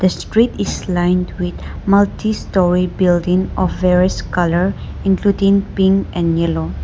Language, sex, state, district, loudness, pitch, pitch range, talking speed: English, female, Nagaland, Dimapur, -16 LUFS, 180 Hz, 175-195 Hz, 125 wpm